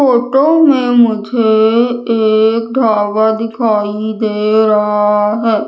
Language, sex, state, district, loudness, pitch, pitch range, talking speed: Hindi, female, Madhya Pradesh, Umaria, -12 LUFS, 220 Hz, 215-240 Hz, 95 wpm